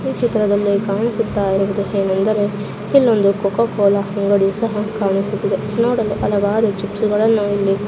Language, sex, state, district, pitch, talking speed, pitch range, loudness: Kannada, female, Karnataka, Shimoga, 205 Hz, 115 wpm, 200-215 Hz, -17 LUFS